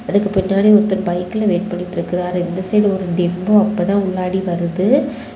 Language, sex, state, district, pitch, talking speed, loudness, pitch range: Tamil, female, Tamil Nadu, Kanyakumari, 190 Hz, 155 wpm, -17 LUFS, 180-205 Hz